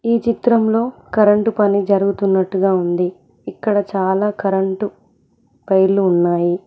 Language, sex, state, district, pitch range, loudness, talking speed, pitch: Telugu, female, Telangana, Mahabubabad, 190-210 Hz, -17 LUFS, 100 wpm, 195 Hz